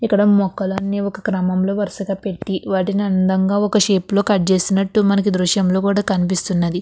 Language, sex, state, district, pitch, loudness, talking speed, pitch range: Telugu, female, Andhra Pradesh, Krishna, 195 Hz, -18 LUFS, 165 wpm, 190-200 Hz